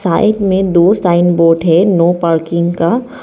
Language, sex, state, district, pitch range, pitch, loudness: Hindi, female, Arunachal Pradesh, Papum Pare, 170-195 Hz, 175 Hz, -11 LUFS